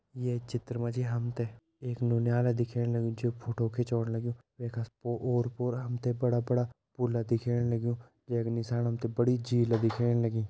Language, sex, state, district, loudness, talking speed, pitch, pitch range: Kumaoni, male, Uttarakhand, Tehri Garhwal, -32 LUFS, 185 wpm, 120 Hz, 115-120 Hz